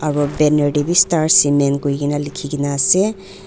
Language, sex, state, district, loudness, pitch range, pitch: Nagamese, female, Nagaland, Dimapur, -16 LUFS, 145-160 Hz, 145 Hz